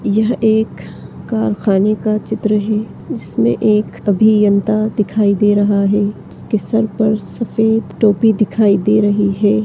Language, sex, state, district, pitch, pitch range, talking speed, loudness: Hindi, female, Uttar Pradesh, Deoria, 215 Hz, 205-220 Hz, 135 wpm, -15 LUFS